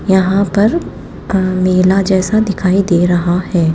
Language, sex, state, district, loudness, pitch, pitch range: Hindi, female, Rajasthan, Jaipur, -13 LUFS, 190 Hz, 185-195 Hz